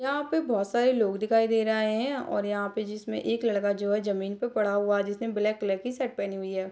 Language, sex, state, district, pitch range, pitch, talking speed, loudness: Hindi, female, Bihar, Purnia, 205-230 Hz, 215 Hz, 270 wpm, -28 LUFS